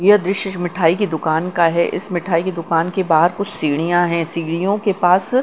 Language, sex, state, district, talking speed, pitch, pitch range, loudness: Hindi, female, Chandigarh, Chandigarh, 210 wpm, 175 Hz, 165-190 Hz, -18 LUFS